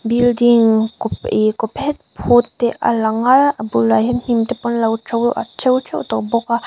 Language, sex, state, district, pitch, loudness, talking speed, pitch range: Mizo, female, Mizoram, Aizawl, 235 Hz, -16 LUFS, 205 wpm, 225-245 Hz